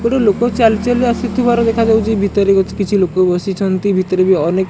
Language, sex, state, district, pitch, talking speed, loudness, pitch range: Odia, male, Odisha, Khordha, 205 Hz, 165 wpm, -14 LUFS, 190-235 Hz